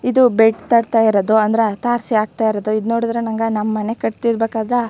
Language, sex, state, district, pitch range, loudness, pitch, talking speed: Kannada, female, Karnataka, Chamarajanagar, 215-235 Hz, -17 LUFS, 225 Hz, 195 wpm